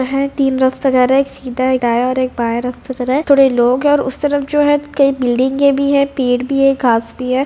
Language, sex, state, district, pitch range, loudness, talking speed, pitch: Hindi, female, Bihar, Purnia, 250-275 Hz, -14 LUFS, 280 wpm, 265 Hz